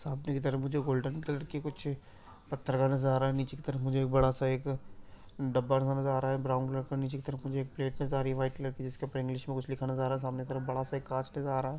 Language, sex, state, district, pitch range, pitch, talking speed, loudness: Garhwali, male, Uttarakhand, Tehri Garhwal, 130-140 Hz, 135 Hz, 320 wpm, -33 LUFS